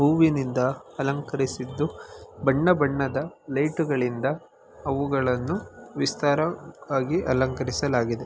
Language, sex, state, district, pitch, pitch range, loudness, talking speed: Kannada, male, Karnataka, Mysore, 135 Hz, 130-145 Hz, -25 LUFS, 65 wpm